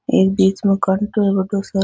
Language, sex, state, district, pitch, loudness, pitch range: Rajasthani, female, Rajasthan, Nagaur, 195 Hz, -17 LUFS, 190-200 Hz